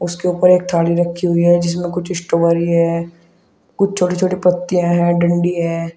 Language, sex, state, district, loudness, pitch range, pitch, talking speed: Hindi, male, Uttar Pradesh, Shamli, -16 LUFS, 170-180 Hz, 175 Hz, 180 wpm